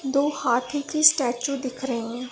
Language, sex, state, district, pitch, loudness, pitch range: Hindi, female, Punjab, Pathankot, 265 Hz, -23 LUFS, 245-285 Hz